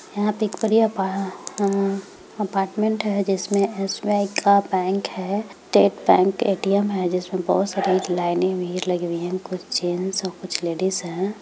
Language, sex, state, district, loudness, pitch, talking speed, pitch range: Hindi, female, Bihar, Madhepura, -22 LUFS, 195 Hz, 150 wpm, 185-200 Hz